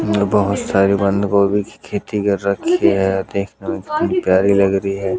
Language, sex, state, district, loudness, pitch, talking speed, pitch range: Hindi, male, Haryana, Jhajjar, -17 LUFS, 100 Hz, 185 wpm, 95-105 Hz